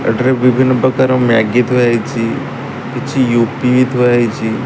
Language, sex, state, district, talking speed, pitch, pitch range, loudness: Odia, male, Odisha, Sambalpur, 140 wpm, 125 Hz, 120-130 Hz, -13 LUFS